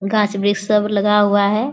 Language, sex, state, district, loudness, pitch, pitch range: Hindi, female, Bihar, Bhagalpur, -16 LUFS, 210 Hz, 200-210 Hz